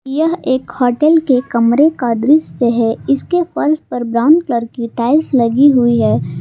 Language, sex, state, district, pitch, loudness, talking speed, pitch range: Hindi, female, Jharkhand, Palamu, 255 Hz, -14 LUFS, 170 wpm, 235-300 Hz